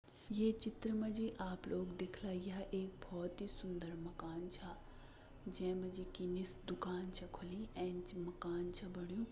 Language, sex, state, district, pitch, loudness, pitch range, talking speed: Hindi, female, Uttarakhand, Uttarkashi, 185 Hz, -45 LUFS, 180-195 Hz, 165 wpm